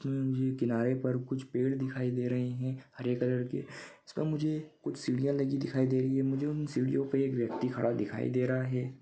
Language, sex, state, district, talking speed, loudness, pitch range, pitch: Hindi, male, Maharashtra, Nagpur, 215 wpm, -32 LUFS, 125-135 Hz, 130 Hz